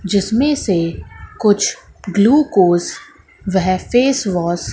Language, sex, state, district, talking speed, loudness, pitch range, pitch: Hindi, female, Madhya Pradesh, Katni, 90 wpm, -16 LUFS, 185-230 Hz, 200 Hz